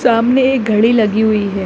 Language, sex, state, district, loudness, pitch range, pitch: Hindi, female, Bihar, Madhepura, -13 LUFS, 215-240 Hz, 225 Hz